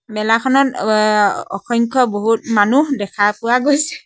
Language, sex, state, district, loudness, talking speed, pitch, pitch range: Assamese, male, Assam, Sonitpur, -15 LUFS, 150 wpm, 230 Hz, 210-265 Hz